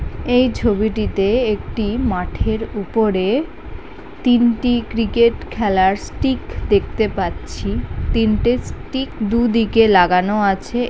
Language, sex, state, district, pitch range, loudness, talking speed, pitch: Bengali, female, West Bengal, North 24 Parganas, 190-235 Hz, -18 LUFS, 100 wpm, 215 Hz